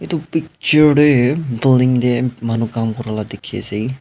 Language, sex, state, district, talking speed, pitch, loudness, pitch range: Nagamese, male, Nagaland, Dimapur, 165 wpm, 125 Hz, -16 LUFS, 115-145 Hz